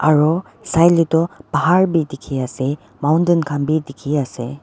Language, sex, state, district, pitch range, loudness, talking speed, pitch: Nagamese, female, Nagaland, Dimapur, 135-165 Hz, -18 LUFS, 155 wpm, 150 Hz